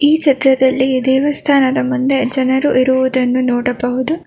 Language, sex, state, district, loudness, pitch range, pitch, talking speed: Kannada, female, Karnataka, Bangalore, -14 LUFS, 255-275 Hz, 260 Hz, 100 wpm